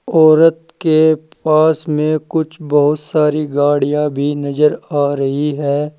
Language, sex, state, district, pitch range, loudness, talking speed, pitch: Hindi, male, Uttar Pradesh, Saharanpur, 145-155 Hz, -15 LUFS, 130 wpm, 150 Hz